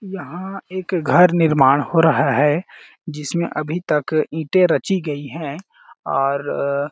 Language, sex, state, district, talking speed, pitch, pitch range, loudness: Hindi, male, Chhattisgarh, Balrampur, 140 wpm, 160 Hz, 145-180 Hz, -19 LUFS